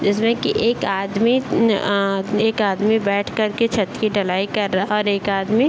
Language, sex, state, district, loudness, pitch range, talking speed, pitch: Hindi, male, Bihar, Bhagalpur, -19 LUFS, 200-225 Hz, 210 wpm, 205 Hz